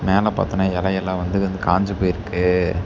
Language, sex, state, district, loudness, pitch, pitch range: Tamil, male, Tamil Nadu, Namakkal, -20 LUFS, 95 Hz, 90-95 Hz